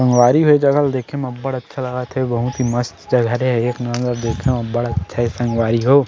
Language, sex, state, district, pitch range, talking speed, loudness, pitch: Chhattisgarhi, male, Chhattisgarh, Sarguja, 120-130 Hz, 255 wpm, -18 LUFS, 125 Hz